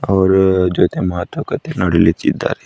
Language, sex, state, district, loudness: Kannada, male, Karnataka, Bidar, -15 LUFS